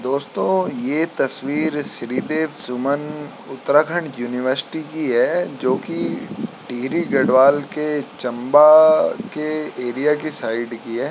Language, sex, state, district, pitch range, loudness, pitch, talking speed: Hindi, male, Uttarakhand, Tehri Garhwal, 130-155 Hz, -19 LUFS, 150 Hz, 120 wpm